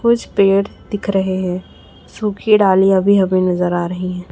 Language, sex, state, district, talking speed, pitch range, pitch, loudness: Hindi, female, Chhattisgarh, Raipur, 180 wpm, 185-200 Hz, 190 Hz, -16 LUFS